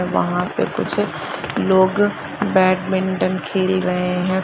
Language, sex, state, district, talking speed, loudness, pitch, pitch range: Hindi, female, Bihar, Madhepura, 110 wpm, -19 LUFS, 185 Hz, 180-190 Hz